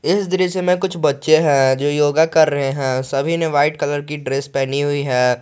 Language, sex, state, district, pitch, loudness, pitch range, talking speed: Hindi, male, Jharkhand, Garhwa, 145 Hz, -17 LUFS, 135-160 Hz, 220 wpm